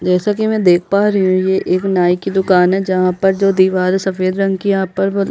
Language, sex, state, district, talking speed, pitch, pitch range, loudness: Hindi, female, Chhattisgarh, Bastar, 260 wpm, 190 Hz, 185-195 Hz, -14 LUFS